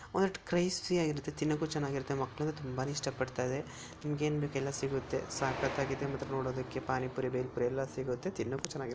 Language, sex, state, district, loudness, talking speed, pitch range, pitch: Kannada, male, Karnataka, Dharwad, -35 LUFS, 155 wpm, 130-150 Hz, 135 Hz